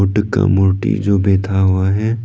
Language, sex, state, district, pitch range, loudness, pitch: Hindi, male, Arunachal Pradesh, Lower Dibang Valley, 95-105 Hz, -15 LUFS, 100 Hz